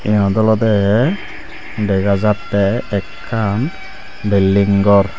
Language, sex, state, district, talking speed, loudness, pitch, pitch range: Chakma, male, Tripura, Dhalai, 70 wpm, -16 LUFS, 105 Hz, 100-110 Hz